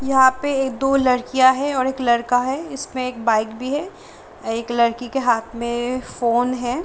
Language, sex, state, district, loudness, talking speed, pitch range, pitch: Hindi, female, Bihar, Sitamarhi, -20 LUFS, 200 wpm, 240-270 Hz, 255 Hz